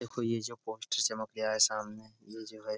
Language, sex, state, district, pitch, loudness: Hindi, male, Uttar Pradesh, Budaun, 110 Hz, -32 LUFS